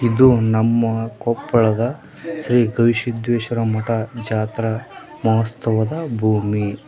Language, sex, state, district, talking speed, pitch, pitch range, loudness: Kannada, male, Karnataka, Koppal, 80 wpm, 115 Hz, 110-120 Hz, -19 LUFS